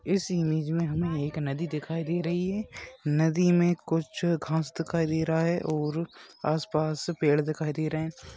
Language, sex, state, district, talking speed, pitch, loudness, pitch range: Hindi, female, Bihar, Bhagalpur, 180 wpm, 160 Hz, -28 LUFS, 155-170 Hz